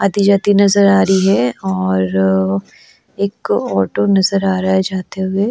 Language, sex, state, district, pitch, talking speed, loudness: Hindi, female, Goa, North and South Goa, 190 Hz, 165 wpm, -14 LUFS